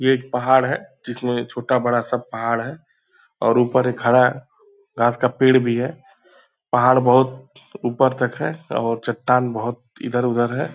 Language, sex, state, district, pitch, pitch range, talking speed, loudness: Hindi, male, Bihar, Purnia, 125 Hz, 120-130 Hz, 160 wpm, -20 LUFS